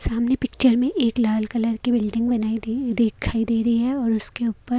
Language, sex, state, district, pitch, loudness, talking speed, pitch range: Hindi, female, Haryana, Jhajjar, 235 Hz, -22 LUFS, 200 wpm, 225-245 Hz